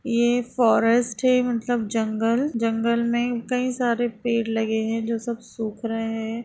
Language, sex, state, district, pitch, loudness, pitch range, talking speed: Hindi, female, Jharkhand, Sahebganj, 235 Hz, -23 LUFS, 225-240 Hz, 160 wpm